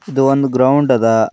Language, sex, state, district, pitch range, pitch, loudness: Kannada, male, Karnataka, Bidar, 125-140 Hz, 135 Hz, -13 LUFS